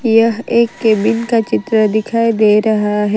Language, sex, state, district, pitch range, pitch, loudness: Hindi, female, Gujarat, Valsad, 215-230 Hz, 225 Hz, -14 LUFS